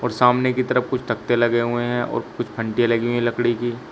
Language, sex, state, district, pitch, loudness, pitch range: Hindi, male, Uttar Pradesh, Shamli, 120 Hz, -21 LUFS, 120-125 Hz